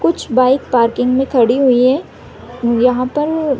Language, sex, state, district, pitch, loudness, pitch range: Hindi, female, Chhattisgarh, Raigarh, 250 Hz, -14 LUFS, 240-270 Hz